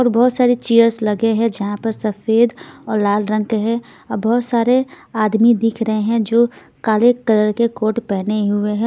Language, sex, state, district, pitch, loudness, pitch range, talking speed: Hindi, female, Bihar, Patna, 225 Hz, -17 LUFS, 215-235 Hz, 195 wpm